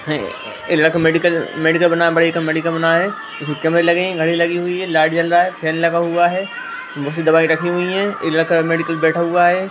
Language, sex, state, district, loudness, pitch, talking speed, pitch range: Hindi, female, Bihar, Darbhanga, -16 LUFS, 170 Hz, 220 wpm, 160-175 Hz